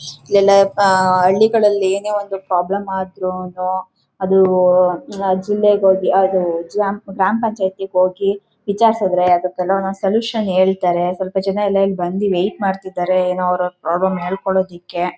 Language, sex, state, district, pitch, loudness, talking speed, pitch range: Kannada, female, Karnataka, Chamarajanagar, 190 Hz, -17 LUFS, 115 wpm, 185-195 Hz